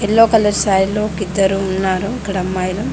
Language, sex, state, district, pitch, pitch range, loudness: Telugu, female, Telangana, Mahabubabad, 195 Hz, 190-210 Hz, -16 LUFS